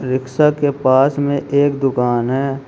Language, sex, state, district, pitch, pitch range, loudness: Hindi, male, Uttar Pradesh, Shamli, 135 Hz, 130-145 Hz, -16 LUFS